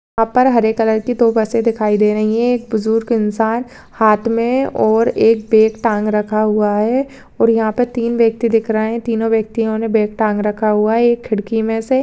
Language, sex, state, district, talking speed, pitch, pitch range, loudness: Hindi, female, Bihar, Saharsa, 220 wpm, 225 Hz, 215-235 Hz, -15 LUFS